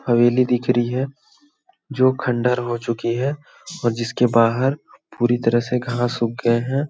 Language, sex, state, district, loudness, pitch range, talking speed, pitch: Hindi, male, Chhattisgarh, Balrampur, -20 LUFS, 120-130 Hz, 165 wpm, 125 Hz